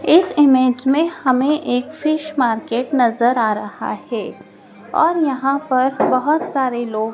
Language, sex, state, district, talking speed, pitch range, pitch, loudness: Hindi, male, Madhya Pradesh, Dhar, 145 wpm, 245-300 Hz, 265 Hz, -17 LUFS